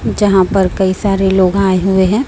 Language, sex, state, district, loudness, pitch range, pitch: Hindi, male, Chhattisgarh, Raipur, -12 LUFS, 190-200 Hz, 190 Hz